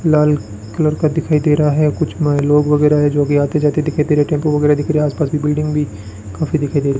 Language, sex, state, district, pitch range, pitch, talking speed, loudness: Hindi, male, Rajasthan, Bikaner, 145-150 Hz, 150 Hz, 275 wpm, -15 LUFS